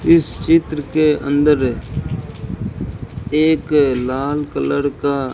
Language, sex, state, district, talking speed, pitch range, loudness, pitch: Hindi, male, Rajasthan, Bikaner, 90 wpm, 130-150 Hz, -18 LUFS, 145 Hz